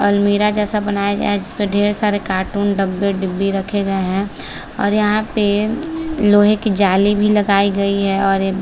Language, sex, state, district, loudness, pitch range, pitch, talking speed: Hindi, female, Maharashtra, Chandrapur, -16 LUFS, 195-210 Hz, 205 Hz, 180 wpm